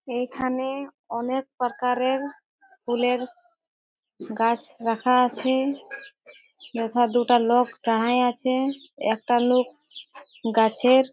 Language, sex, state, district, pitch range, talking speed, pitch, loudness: Bengali, female, West Bengal, Jhargram, 240-275 Hz, 85 wpm, 250 Hz, -24 LUFS